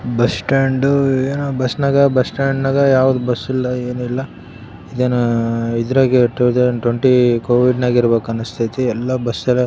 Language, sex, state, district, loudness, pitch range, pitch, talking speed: Kannada, male, Karnataka, Raichur, -16 LUFS, 120-130 Hz, 125 Hz, 130 wpm